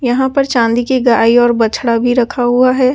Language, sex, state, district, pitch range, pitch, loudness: Hindi, female, Delhi, New Delhi, 235-255 Hz, 245 Hz, -12 LUFS